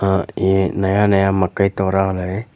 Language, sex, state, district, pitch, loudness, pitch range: Hindi, male, Arunachal Pradesh, Longding, 95 Hz, -17 LUFS, 95-100 Hz